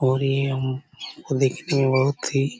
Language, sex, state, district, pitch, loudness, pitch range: Hindi, male, Chhattisgarh, Korba, 135 Hz, -23 LUFS, 130-140 Hz